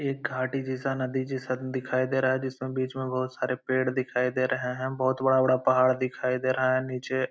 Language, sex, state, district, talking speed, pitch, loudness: Hindi, male, Uttar Pradesh, Hamirpur, 230 wpm, 130 Hz, -27 LUFS